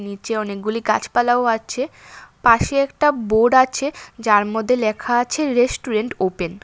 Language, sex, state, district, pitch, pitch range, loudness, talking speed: Bengali, female, Tripura, West Tripura, 230 Hz, 215-255 Hz, -19 LUFS, 135 wpm